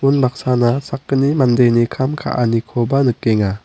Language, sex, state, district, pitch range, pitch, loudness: Garo, male, Meghalaya, West Garo Hills, 120-135 Hz, 125 Hz, -16 LUFS